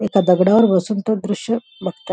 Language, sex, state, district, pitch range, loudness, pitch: Marathi, female, Maharashtra, Nagpur, 185-220 Hz, -17 LUFS, 205 Hz